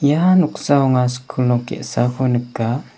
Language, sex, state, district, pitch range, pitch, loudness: Garo, male, Meghalaya, West Garo Hills, 125-145 Hz, 125 Hz, -18 LUFS